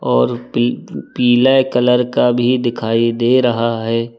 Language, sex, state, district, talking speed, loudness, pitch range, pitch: Hindi, male, Uttar Pradesh, Lucknow, 145 wpm, -15 LUFS, 115-125 Hz, 120 Hz